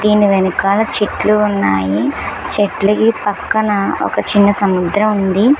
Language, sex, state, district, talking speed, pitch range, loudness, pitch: Telugu, female, Telangana, Hyderabad, 95 wpm, 195-215 Hz, -14 LUFS, 205 Hz